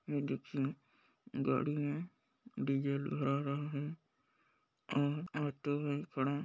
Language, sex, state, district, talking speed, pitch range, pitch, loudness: Hindi, male, Chhattisgarh, Balrampur, 120 wpm, 140-150 Hz, 145 Hz, -38 LUFS